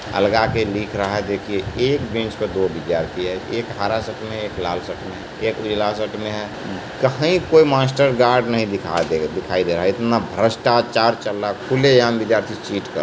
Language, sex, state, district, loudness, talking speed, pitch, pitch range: Hindi, male, Bihar, Saharsa, -19 LUFS, 225 wpm, 110 Hz, 105-120 Hz